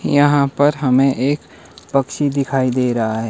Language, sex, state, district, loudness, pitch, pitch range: Hindi, male, Himachal Pradesh, Shimla, -17 LUFS, 135 Hz, 130-145 Hz